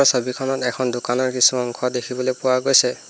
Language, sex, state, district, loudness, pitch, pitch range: Assamese, male, Assam, Hailakandi, -20 LUFS, 125 Hz, 125-130 Hz